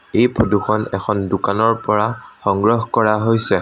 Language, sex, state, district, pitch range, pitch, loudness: Assamese, male, Assam, Sonitpur, 105-115 Hz, 110 Hz, -17 LUFS